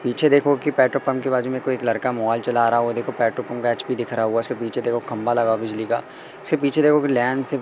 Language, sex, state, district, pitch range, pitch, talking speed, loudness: Hindi, male, Madhya Pradesh, Katni, 115-135 Hz, 125 Hz, 275 wpm, -21 LUFS